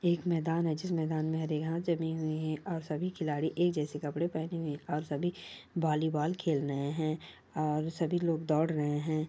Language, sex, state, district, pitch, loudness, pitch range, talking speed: Hindi, male, Chhattisgarh, Bilaspur, 160 Hz, -33 LUFS, 155-170 Hz, 200 wpm